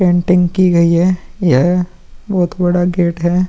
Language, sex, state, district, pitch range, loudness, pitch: Hindi, male, Uttar Pradesh, Muzaffarnagar, 175-180 Hz, -14 LUFS, 175 Hz